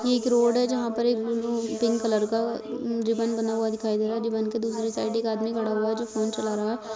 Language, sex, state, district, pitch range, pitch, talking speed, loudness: Hindi, female, Bihar, Darbhanga, 220-230 Hz, 225 Hz, 265 wpm, -26 LUFS